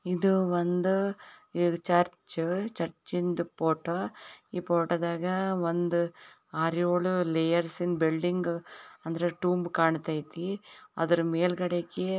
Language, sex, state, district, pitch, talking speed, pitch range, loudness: Kannada, female, Karnataka, Bijapur, 175 Hz, 90 wpm, 170-180 Hz, -29 LUFS